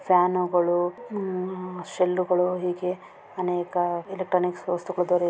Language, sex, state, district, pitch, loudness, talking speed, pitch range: Kannada, female, Karnataka, Raichur, 180 Hz, -26 LUFS, 115 wpm, 175-185 Hz